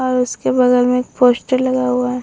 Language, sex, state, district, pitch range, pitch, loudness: Hindi, female, Bihar, Vaishali, 250-255 Hz, 250 Hz, -15 LUFS